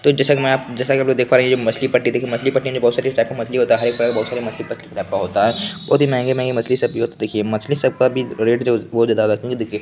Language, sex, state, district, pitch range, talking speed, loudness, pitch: Hindi, male, Bihar, Begusarai, 115-130 Hz, 280 wpm, -18 LUFS, 125 Hz